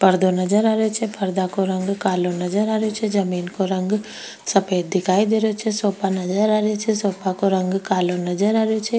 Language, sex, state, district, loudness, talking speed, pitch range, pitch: Rajasthani, female, Rajasthan, Nagaur, -20 LUFS, 225 wpm, 185-215 Hz, 195 Hz